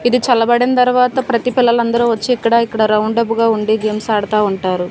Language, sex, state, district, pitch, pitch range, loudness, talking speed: Telugu, female, Andhra Pradesh, Manyam, 230 Hz, 215-245 Hz, -14 LUFS, 170 wpm